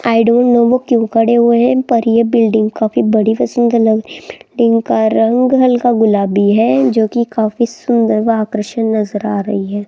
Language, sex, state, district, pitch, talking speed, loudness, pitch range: Hindi, female, Rajasthan, Jaipur, 230 Hz, 180 wpm, -13 LUFS, 220-240 Hz